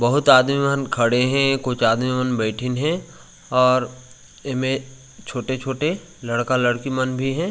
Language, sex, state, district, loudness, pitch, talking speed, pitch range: Chhattisgarhi, male, Chhattisgarh, Raigarh, -20 LUFS, 130 Hz, 145 wpm, 125-135 Hz